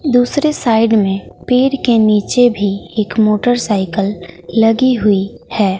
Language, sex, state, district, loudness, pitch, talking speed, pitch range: Hindi, female, Bihar, West Champaran, -14 LUFS, 220 Hz, 125 wpm, 200-245 Hz